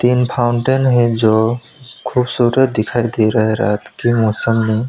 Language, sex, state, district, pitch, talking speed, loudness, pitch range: Hindi, male, West Bengal, Alipurduar, 120 Hz, 160 wpm, -15 LUFS, 110-125 Hz